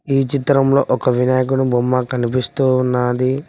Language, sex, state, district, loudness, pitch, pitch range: Telugu, male, Telangana, Mahabubabad, -17 LUFS, 130 Hz, 125-135 Hz